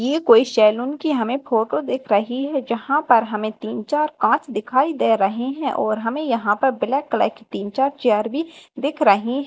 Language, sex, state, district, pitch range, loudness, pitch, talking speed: Hindi, female, Madhya Pradesh, Dhar, 220-285 Hz, -20 LUFS, 255 Hz, 210 wpm